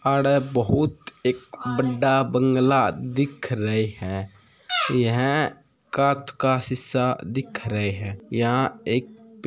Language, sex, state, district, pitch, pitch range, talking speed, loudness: Hindi, male, Rajasthan, Churu, 130 Hz, 120-140 Hz, 115 wpm, -23 LUFS